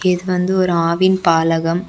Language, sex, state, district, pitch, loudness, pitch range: Tamil, female, Tamil Nadu, Kanyakumari, 180 Hz, -16 LUFS, 165-185 Hz